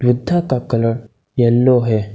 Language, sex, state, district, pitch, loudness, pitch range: Hindi, male, Arunachal Pradesh, Lower Dibang Valley, 120 Hz, -16 LUFS, 115-130 Hz